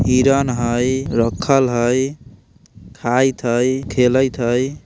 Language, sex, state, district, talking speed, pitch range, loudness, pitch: Bajjika, male, Bihar, Vaishali, 100 wpm, 120-130 Hz, -17 LUFS, 125 Hz